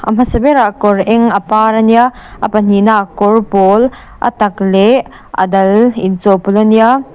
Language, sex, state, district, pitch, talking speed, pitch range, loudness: Mizo, female, Mizoram, Aizawl, 215 Hz, 175 wpm, 200-235 Hz, -10 LUFS